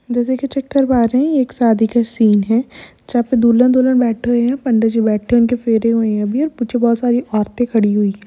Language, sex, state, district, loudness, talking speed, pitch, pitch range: Hindi, female, Bihar, Kishanganj, -15 LUFS, 230 wpm, 240 Hz, 225-250 Hz